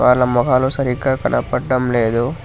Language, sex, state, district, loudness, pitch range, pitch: Telugu, male, Telangana, Hyderabad, -17 LUFS, 120-130 Hz, 125 Hz